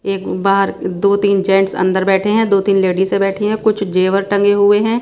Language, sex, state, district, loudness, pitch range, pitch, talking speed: Hindi, female, Maharashtra, Gondia, -14 LUFS, 195-205 Hz, 195 Hz, 215 wpm